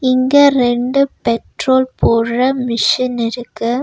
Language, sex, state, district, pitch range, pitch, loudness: Tamil, female, Tamil Nadu, Nilgiris, 235-260 Hz, 250 Hz, -14 LUFS